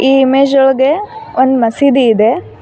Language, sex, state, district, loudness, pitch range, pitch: Kannada, female, Karnataka, Koppal, -11 LUFS, 230-275 Hz, 265 Hz